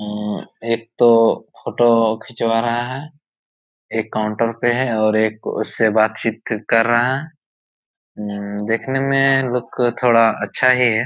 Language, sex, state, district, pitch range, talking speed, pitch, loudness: Hindi, male, Chhattisgarh, Raigarh, 110-125 Hz, 140 wpm, 115 Hz, -18 LUFS